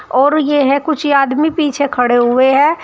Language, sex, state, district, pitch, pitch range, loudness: Hindi, female, Uttar Pradesh, Shamli, 285 Hz, 265-295 Hz, -13 LUFS